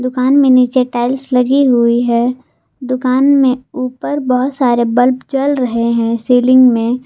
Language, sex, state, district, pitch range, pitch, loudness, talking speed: Hindi, female, Jharkhand, Garhwa, 245-260 Hz, 255 Hz, -13 LUFS, 155 wpm